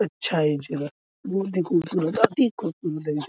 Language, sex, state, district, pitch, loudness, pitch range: Hindi, male, Bihar, Araria, 165 Hz, -25 LUFS, 150-195 Hz